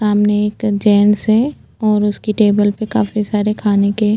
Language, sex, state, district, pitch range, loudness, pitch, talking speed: Hindi, female, Uttarakhand, Tehri Garhwal, 205-215 Hz, -15 LUFS, 210 Hz, 185 wpm